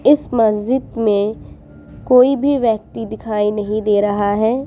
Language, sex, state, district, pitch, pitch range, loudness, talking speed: Hindi, female, Bihar, Vaishali, 220 Hz, 210-250 Hz, -16 LUFS, 155 wpm